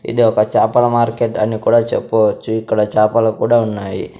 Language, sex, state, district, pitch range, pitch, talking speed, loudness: Telugu, male, Andhra Pradesh, Sri Satya Sai, 105-115 Hz, 110 Hz, 155 wpm, -15 LUFS